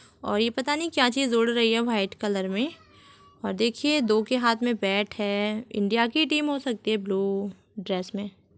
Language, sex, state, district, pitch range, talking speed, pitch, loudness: Hindi, female, Bihar, Supaul, 205-250 Hz, 205 wpm, 225 Hz, -25 LUFS